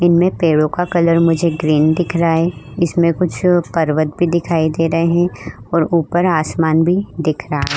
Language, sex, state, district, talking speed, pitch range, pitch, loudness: Hindi, female, Uttar Pradesh, Budaun, 185 wpm, 155-175 Hz, 165 Hz, -15 LUFS